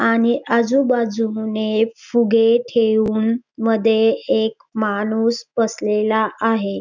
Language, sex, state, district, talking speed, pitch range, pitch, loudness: Marathi, female, Maharashtra, Dhule, 80 wpm, 220-235 Hz, 225 Hz, -18 LUFS